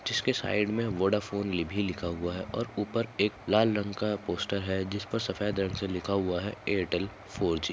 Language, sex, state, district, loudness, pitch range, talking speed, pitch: Hindi, male, Maharashtra, Nagpur, -30 LUFS, 95-105 Hz, 210 wpm, 100 Hz